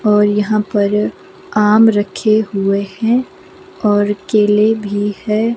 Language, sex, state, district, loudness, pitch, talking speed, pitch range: Hindi, female, Himachal Pradesh, Shimla, -14 LUFS, 210 Hz, 120 wpm, 205-225 Hz